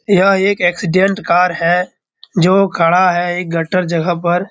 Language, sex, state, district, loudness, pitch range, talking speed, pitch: Hindi, male, Bihar, Darbhanga, -14 LUFS, 175-195 Hz, 160 wpm, 180 Hz